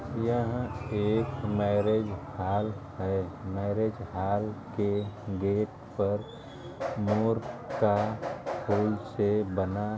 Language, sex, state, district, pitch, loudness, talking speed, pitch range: Hindi, male, Uttar Pradesh, Ghazipur, 105 Hz, -30 LUFS, 95 wpm, 100-115 Hz